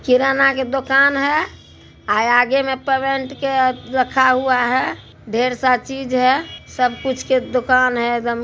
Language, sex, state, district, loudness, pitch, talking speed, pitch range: Hindi, male, Bihar, Araria, -17 LUFS, 260 Hz, 155 wpm, 250-270 Hz